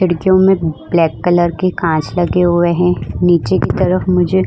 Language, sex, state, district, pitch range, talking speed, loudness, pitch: Hindi, female, Uttar Pradesh, Muzaffarnagar, 170-185 Hz, 190 wpm, -14 LUFS, 175 Hz